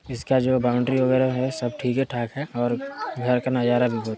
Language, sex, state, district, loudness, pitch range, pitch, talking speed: Hindi, male, Chhattisgarh, Sarguja, -23 LUFS, 120-130 Hz, 125 Hz, 215 wpm